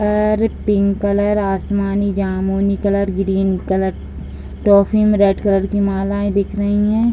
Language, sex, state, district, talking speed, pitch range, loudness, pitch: Hindi, female, Bihar, Jahanabad, 145 wpm, 195-205 Hz, -17 LUFS, 200 Hz